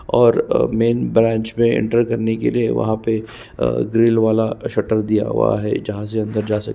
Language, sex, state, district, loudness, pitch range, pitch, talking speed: Hindi, male, Chhattisgarh, Sukma, -18 LUFS, 110-115 Hz, 110 Hz, 205 wpm